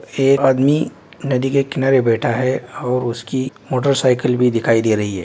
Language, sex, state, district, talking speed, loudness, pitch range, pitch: Hindi, male, Bihar, Darbhanga, 185 wpm, -17 LUFS, 120-135 Hz, 130 Hz